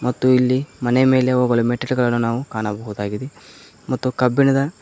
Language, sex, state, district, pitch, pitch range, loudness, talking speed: Kannada, male, Karnataka, Koppal, 125 Hz, 120-130 Hz, -19 LUFS, 125 wpm